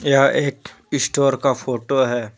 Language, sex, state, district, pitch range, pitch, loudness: Hindi, male, Jharkhand, Deoghar, 125-140 Hz, 135 Hz, -19 LUFS